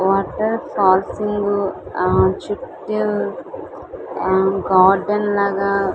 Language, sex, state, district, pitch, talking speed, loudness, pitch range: Telugu, female, Andhra Pradesh, Visakhapatnam, 195 Hz, 80 wpm, -18 LUFS, 185-205 Hz